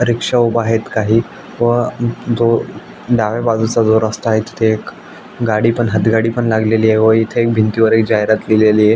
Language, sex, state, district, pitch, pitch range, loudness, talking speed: Marathi, male, Maharashtra, Aurangabad, 110 Hz, 110-115 Hz, -14 LUFS, 180 wpm